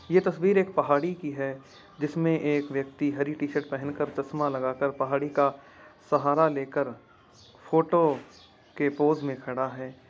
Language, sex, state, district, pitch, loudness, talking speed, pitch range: Hindi, male, Rajasthan, Churu, 145 Hz, -27 LUFS, 155 wpm, 130-150 Hz